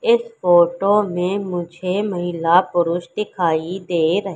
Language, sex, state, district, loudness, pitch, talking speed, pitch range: Hindi, female, Madhya Pradesh, Katni, -19 LUFS, 180 Hz, 125 wpm, 175-200 Hz